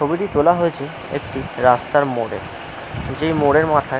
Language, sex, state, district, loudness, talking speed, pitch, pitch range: Bengali, male, West Bengal, North 24 Parganas, -19 LUFS, 150 wpm, 145 Hz, 135-155 Hz